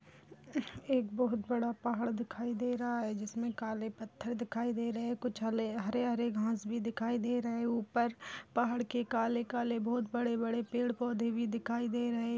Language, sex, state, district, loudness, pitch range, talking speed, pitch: Kumaoni, female, Uttarakhand, Uttarkashi, -36 LUFS, 230-240 Hz, 190 wpm, 235 Hz